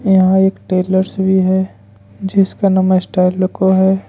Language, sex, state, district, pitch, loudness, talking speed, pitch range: Hindi, male, Jharkhand, Ranchi, 190 Hz, -14 LUFS, 130 wpm, 185-190 Hz